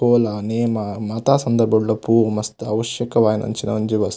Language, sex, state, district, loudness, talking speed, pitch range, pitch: Tulu, male, Karnataka, Dakshina Kannada, -19 LUFS, 130 wpm, 110-115 Hz, 110 Hz